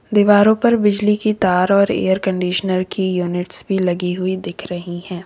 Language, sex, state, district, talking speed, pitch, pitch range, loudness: Hindi, female, Uttar Pradesh, Lalitpur, 180 wpm, 190 Hz, 180-205 Hz, -17 LUFS